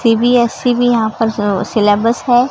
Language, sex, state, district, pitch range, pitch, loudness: Hindi, female, Maharashtra, Gondia, 220-245 Hz, 230 Hz, -13 LUFS